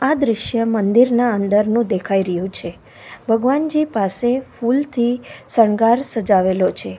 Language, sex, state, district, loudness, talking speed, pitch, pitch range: Gujarati, female, Gujarat, Valsad, -17 LUFS, 110 wpm, 230 Hz, 200-245 Hz